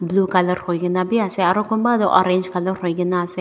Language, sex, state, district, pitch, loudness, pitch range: Nagamese, female, Nagaland, Dimapur, 185 Hz, -19 LUFS, 180-195 Hz